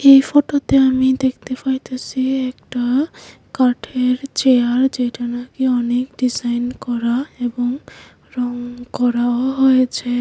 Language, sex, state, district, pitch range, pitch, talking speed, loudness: Bengali, female, Tripura, West Tripura, 245-265 Hz, 255 Hz, 100 wpm, -18 LUFS